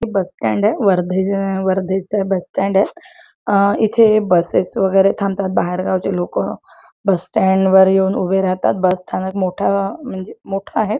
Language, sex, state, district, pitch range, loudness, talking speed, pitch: Marathi, female, Maharashtra, Chandrapur, 190-200 Hz, -17 LUFS, 140 wpm, 195 Hz